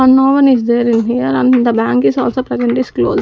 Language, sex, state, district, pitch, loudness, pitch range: English, female, Chandigarh, Chandigarh, 240 Hz, -12 LUFS, 230-255 Hz